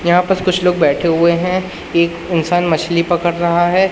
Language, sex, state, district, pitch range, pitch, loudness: Hindi, male, Madhya Pradesh, Umaria, 170-180 Hz, 175 Hz, -15 LUFS